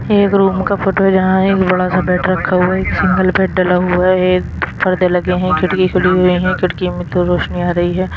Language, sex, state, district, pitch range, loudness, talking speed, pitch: Hindi, female, Himachal Pradesh, Shimla, 180-185 Hz, -14 LUFS, 250 wpm, 185 Hz